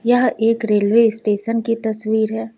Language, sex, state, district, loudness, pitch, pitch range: Hindi, female, Uttar Pradesh, Lucknow, -16 LUFS, 225 Hz, 215-230 Hz